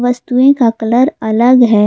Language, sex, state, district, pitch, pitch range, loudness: Hindi, female, Jharkhand, Garhwa, 245 Hz, 225-255 Hz, -11 LUFS